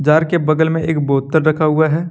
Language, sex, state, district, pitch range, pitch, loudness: Hindi, male, Jharkhand, Deoghar, 155-160 Hz, 155 Hz, -15 LUFS